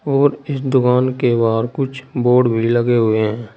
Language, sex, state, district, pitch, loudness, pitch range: Hindi, male, Uttar Pradesh, Saharanpur, 125 Hz, -16 LUFS, 115-135 Hz